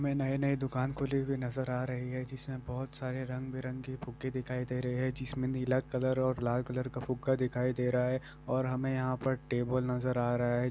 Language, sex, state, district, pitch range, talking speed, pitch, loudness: Hindi, male, Bihar, Saran, 125-130 Hz, 225 wpm, 130 Hz, -34 LUFS